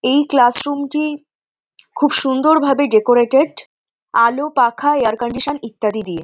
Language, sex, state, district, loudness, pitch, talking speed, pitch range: Bengali, female, West Bengal, North 24 Parganas, -15 LUFS, 270 Hz, 135 wpm, 240-290 Hz